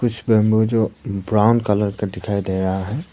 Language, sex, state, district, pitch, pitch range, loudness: Hindi, male, Arunachal Pradesh, Papum Pare, 105 Hz, 100-115 Hz, -19 LUFS